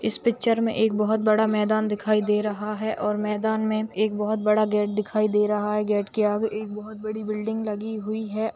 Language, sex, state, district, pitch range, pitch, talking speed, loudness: Hindi, female, Bihar, Saharsa, 210-220 Hz, 215 Hz, 225 wpm, -24 LUFS